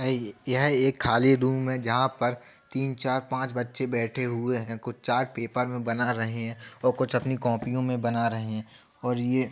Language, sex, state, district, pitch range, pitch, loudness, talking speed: Hindi, male, Uttar Pradesh, Jalaun, 115-130 Hz, 125 Hz, -27 LUFS, 200 wpm